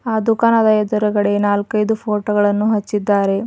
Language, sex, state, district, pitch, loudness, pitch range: Kannada, female, Karnataka, Bidar, 210 Hz, -16 LUFS, 205-220 Hz